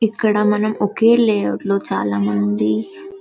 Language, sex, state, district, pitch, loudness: Telugu, female, Karnataka, Bellary, 210 Hz, -17 LUFS